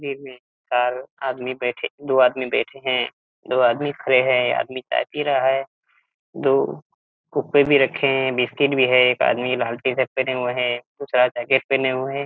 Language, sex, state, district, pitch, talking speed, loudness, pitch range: Hindi, male, Bihar, Kishanganj, 130 Hz, 195 wpm, -20 LUFS, 125-135 Hz